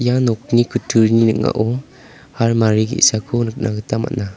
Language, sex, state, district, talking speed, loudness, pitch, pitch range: Garo, male, Meghalaya, South Garo Hills, 125 wpm, -17 LUFS, 115 Hz, 110-125 Hz